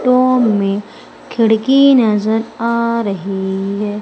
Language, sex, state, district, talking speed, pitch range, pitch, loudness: Hindi, female, Madhya Pradesh, Umaria, 105 wpm, 205-235 Hz, 220 Hz, -14 LUFS